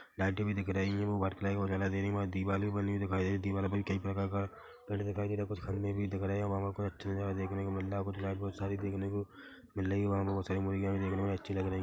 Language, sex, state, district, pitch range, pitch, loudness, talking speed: Hindi, male, Chhattisgarh, Korba, 95-100 Hz, 100 Hz, -36 LUFS, 285 wpm